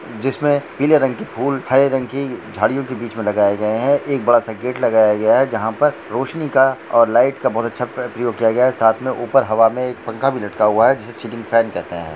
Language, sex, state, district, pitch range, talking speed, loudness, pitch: Hindi, male, Jharkhand, Jamtara, 110-135 Hz, 250 wpm, -17 LUFS, 120 Hz